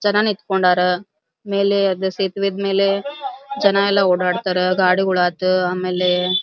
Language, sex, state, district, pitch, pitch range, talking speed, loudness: Kannada, female, Karnataka, Belgaum, 190 Hz, 180-200 Hz, 120 wpm, -18 LUFS